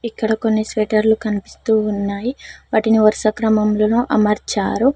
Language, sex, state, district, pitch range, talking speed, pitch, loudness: Telugu, female, Telangana, Mahabubabad, 215-220 Hz, 110 wpm, 220 Hz, -17 LUFS